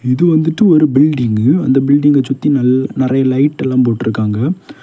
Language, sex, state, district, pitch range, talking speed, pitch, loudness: Tamil, male, Tamil Nadu, Kanyakumari, 125-150 Hz, 150 wpm, 135 Hz, -13 LUFS